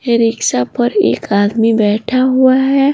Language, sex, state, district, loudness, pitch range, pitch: Hindi, female, Bihar, Patna, -13 LUFS, 215-260 Hz, 235 Hz